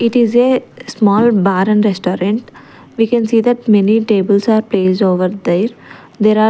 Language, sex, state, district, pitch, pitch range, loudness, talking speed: English, female, Chandigarh, Chandigarh, 215 Hz, 200-230 Hz, -13 LUFS, 165 wpm